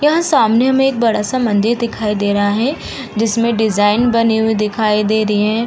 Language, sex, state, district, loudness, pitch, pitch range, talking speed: Hindi, female, Uttar Pradesh, Varanasi, -15 LUFS, 225 Hz, 210-240 Hz, 190 wpm